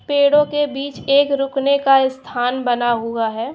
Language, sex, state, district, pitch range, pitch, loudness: Hindi, female, Chhattisgarh, Korba, 245-280 Hz, 275 Hz, -17 LUFS